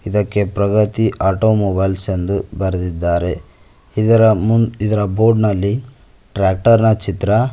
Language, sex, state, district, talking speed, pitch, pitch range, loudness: Kannada, male, Karnataka, Koppal, 105 wpm, 100 Hz, 95-110 Hz, -16 LUFS